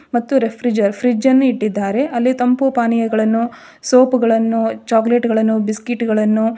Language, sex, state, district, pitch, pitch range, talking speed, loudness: Kannada, female, Karnataka, Dharwad, 230 Hz, 220-250 Hz, 135 wpm, -16 LUFS